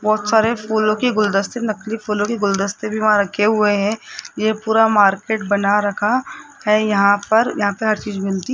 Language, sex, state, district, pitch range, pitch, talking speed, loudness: Hindi, male, Rajasthan, Jaipur, 205-220 Hz, 215 Hz, 195 wpm, -17 LUFS